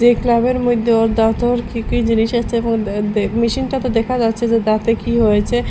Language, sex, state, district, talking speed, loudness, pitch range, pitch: Bengali, female, Assam, Hailakandi, 160 wpm, -16 LUFS, 225-240 Hz, 230 Hz